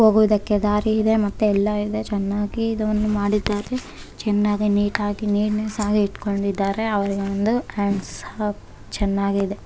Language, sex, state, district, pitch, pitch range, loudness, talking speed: Kannada, male, Karnataka, Bellary, 210 Hz, 200-215 Hz, -22 LUFS, 120 wpm